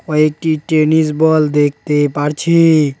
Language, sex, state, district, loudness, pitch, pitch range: Bengali, male, West Bengal, Cooch Behar, -13 LUFS, 155 Hz, 145-160 Hz